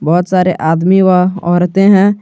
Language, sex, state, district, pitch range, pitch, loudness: Hindi, male, Jharkhand, Garhwa, 175-195 Hz, 180 Hz, -11 LUFS